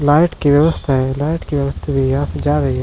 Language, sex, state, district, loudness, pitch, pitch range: Hindi, male, Jharkhand, Jamtara, -16 LUFS, 145 Hz, 135-150 Hz